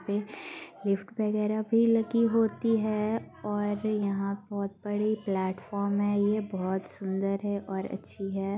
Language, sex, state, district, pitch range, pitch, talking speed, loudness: Hindi, female, Bihar, Gaya, 200-215 Hz, 205 Hz, 140 wpm, -30 LUFS